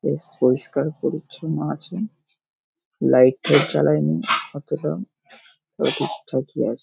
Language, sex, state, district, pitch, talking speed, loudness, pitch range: Bengali, male, West Bengal, Paschim Medinipur, 145 Hz, 105 wpm, -22 LUFS, 125-160 Hz